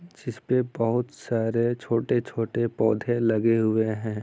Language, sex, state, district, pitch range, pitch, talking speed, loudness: Hindi, male, Bihar, Saran, 110-120 Hz, 115 Hz, 115 wpm, -25 LUFS